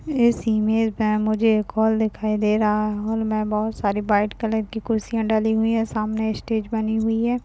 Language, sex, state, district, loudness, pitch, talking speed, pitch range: Hindi, female, Bihar, Madhepura, -22 LUFS, 220 Hz, 210 wpm, 215-225 Hz